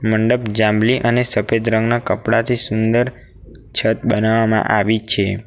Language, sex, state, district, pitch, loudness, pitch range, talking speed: Gujarati, male, Gujarat, Valsad, 110 Hz, -17 LUFS, 105-120 Hz, 130 wpm